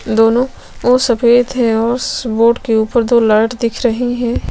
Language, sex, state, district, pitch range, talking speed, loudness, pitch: Hindi, female, Chhattisgarh, Sukma, 225-245 Hz, 185 wpm, -14 LUFS, 235 Hz